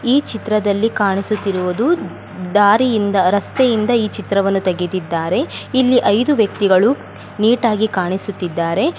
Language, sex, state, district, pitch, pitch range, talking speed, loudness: Kannada, female, Karnataka, Bellary, 210 Hz, 190-235 Hz, 100 wpm, -16 LUFS